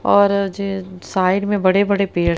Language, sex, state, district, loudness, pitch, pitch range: Hindi, female, Haryana, Rohtak, -18 LUFS, 195 Hz, 185-200 Hz